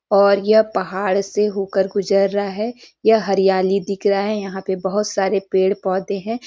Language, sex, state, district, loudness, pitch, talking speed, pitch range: Hindi, female, Chhattisgarh, Sarguja, -19 LUFS, 200 Hz, 185 wpm, 195-205 Hz